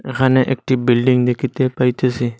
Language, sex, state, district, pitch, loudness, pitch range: Bengali, male, Assam, Hailakandi, 130 Hz, -16 LUFS, 125-130 Hz